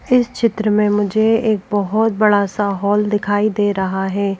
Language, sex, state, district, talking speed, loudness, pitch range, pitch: Hindi, female, Madhya Pradesh, Bhopal, 180 wpm, -17 LUFS, 200-220 Hz, 205 Hz